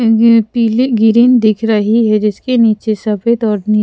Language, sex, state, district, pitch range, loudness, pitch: Hindi, female, Punjab, Pathankot, 215-230 Hz, -12 LUFS, 225 Hz